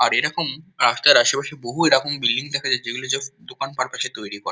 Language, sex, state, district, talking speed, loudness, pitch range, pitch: Bengali, male, West Bengal, Kolkata, 210 wpm, -20 LUFS, 120-150 Hz, 140 Hz